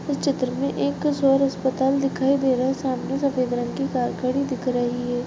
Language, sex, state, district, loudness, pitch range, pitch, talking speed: Hindi, female, Chhattisgarh, Rajnandgaon, -23 LUFS, 250-275 Hz, 265 Hz, 215 wpm